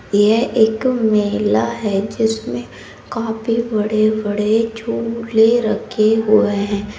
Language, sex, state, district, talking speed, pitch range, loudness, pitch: Hindi, female, Uttarakhand, Tehri Garhwal, 85 wpm, 205-225 Hz, -17 LUFS, 215 Hz